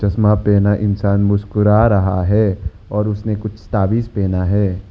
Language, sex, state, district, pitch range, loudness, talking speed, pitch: Hindi, male, Arunachal Pradesh, Lower Dibang Valley, 100-105 Hz, -16 LUFS, 145 wpm, 100 Hz